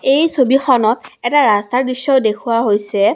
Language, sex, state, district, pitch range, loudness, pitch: Assamese, female, Assam, Kamrup Metropolitan, 215-270 Hz, -14 LUFS, 250 Hz